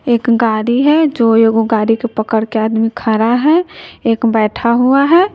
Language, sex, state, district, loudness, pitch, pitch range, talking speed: Hindi, female, Bihar, West Champaran, -13 LUFS, 230 Hz, 225-250 Hz, 170 wpm